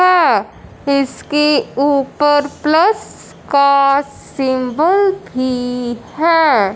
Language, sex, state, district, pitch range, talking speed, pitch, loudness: Hindi, male, Punjab, Fazilka, 260-320 Hz, 70 wpm, 280 Hz, -14 LUFS